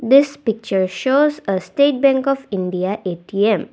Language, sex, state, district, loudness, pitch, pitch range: English, female, Assam, Kamrup Metropolitan, -18 LUFS, 220 Hz, 190-275 Hz